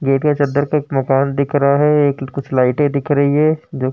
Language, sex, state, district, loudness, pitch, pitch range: Hindi, male, Uttar Pradesh, Jyotiba Phule Nagar, -16 LUFS, 140 Hz, 135-145 Hz